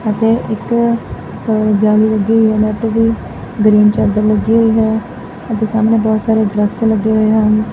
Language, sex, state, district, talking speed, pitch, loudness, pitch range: Punjabi, female, Punjab, Fazilka, 165 wpm, 220 Hz, -13 LUFS, 215-225 Hz